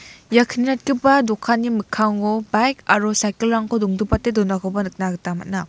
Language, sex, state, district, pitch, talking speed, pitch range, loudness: Garo, female, Meghalaya, West Garo Hills, 215 Hz, 145 wpm, 205-235 Hz, -19 LUFS